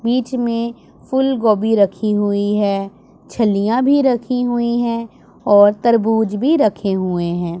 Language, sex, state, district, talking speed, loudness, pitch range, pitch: Hindi, male, Punjab, Pathankot, 135 wpm, -16 LUFS, 205-240 Hz, 225 Hz